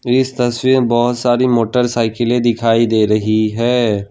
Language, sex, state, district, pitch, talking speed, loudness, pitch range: Hindi, male, Gujarat, Valsad, 120 Hz, 145 wpm, -14 LUFS, 115-125 Hz